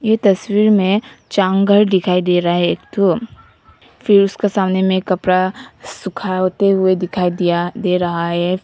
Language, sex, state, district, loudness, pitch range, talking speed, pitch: Hindi, female, Nagaland, Kohima, -16 LUFS, 180-200 Hz, 145 wpm, 190 Hz